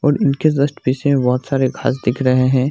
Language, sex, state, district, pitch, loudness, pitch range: Hindi, male, Bihar, Jamui, 130 Hz, -17 LUFS, 130-140 Hz